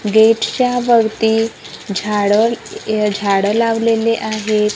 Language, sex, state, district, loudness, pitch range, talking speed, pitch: Marathi, female, Maharashtra, Gondia, -15 LUFS, 210-230 Hz, 90 wpm, 220 Hz